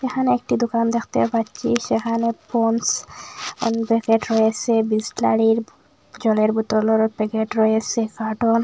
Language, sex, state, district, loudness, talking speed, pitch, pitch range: Bengali, female, Assam, Hailakandi, -20 LUFS, 120 wpm, 225 Hz, 220-230 Hz